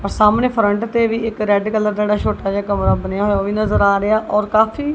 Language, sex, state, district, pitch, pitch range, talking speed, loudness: Punjabi, female, Punjab, Kapurthala, 210 Hz, 205-220 Hz, 255 wpm, -17 LUFS